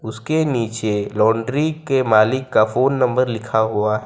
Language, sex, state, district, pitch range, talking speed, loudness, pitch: Hindi, male, Gujarat, Valsad, 110-130 Hz, 145 wpm, -18 LUFS, 115 Hz